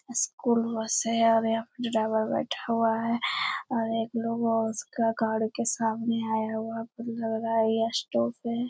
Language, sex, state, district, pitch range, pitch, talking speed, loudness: Hindi, male, Bihar, Jamui, 225-230 Hz, 225 Hz, 170 wpm, -28 LUFS